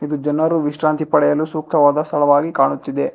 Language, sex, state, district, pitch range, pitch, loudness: Kannada, male, Karnataka, Bangalore, 145-155 Hz, 150 Hz, -17 LUFS